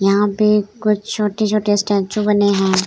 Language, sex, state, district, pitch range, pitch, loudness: Hindi, female, Bihar, Samastipur, 200-210 Hz, 205 Hz, -17 LUFS